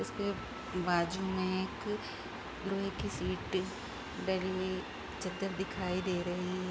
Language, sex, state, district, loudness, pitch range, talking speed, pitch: Hindi, female, Uttar Pradesh, Jalaun, -36 LUFS, 185-195 Hz, 105 wpm, 185 Hz